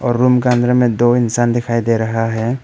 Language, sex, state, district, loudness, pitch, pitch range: Hindi, male, Arunachal Pradesh, Papum Pare, -15 LUFS, 120 Hz, 115-125 Hz